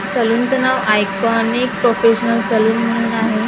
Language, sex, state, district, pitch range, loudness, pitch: Marathi, female, Maharashtra, Gondia, 225-235 Hz, -15 LUFS, 230 Hz